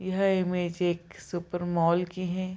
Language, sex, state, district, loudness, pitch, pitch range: Hindi, female, Bihar, Gopalganj, -29 LUFS, 180 Hz, 175-185 Hz